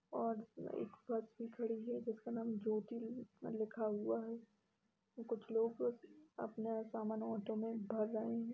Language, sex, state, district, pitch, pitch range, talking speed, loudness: Hindi, female, Bihar, East Champaran, 225 Hz, 220-230 Hz, 155 wpm, -43 LUFS